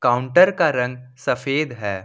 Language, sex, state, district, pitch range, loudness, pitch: Hindi, male, Jharkhand, Ranchi, 120-145 Hz, -20 LUFS, 125 Hz